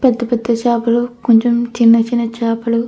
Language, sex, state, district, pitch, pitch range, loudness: Telugu, female, Andhra Pradesh, Anantapur, 235 Hz, 230-240 Hz, -14 LUFS